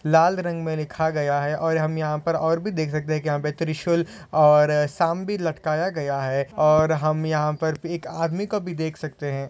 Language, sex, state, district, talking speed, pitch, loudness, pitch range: Hindi, male, Maharashtra, Solapur, 215 wpm, 155 Hz, -23 LUFS, 150-165 Hz